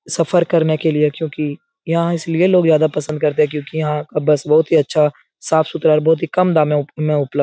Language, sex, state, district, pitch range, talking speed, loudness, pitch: Hindi, male, Bihar, Jahanabad, 150-165 Hz, 240 wpm, -16 LUFS, 155 Hz